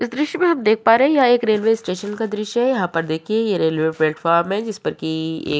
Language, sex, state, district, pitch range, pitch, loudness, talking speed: Hindi, female, Uttar Pradesh, Hamirpur, 165-240 Hz, 210 Hz, -19 LUFS, 255 wpm